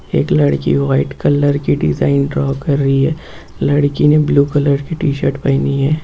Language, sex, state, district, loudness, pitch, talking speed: Hindi, male, West Bengal, Purulia, -15 LUFS, 140 Hz, 180 wpm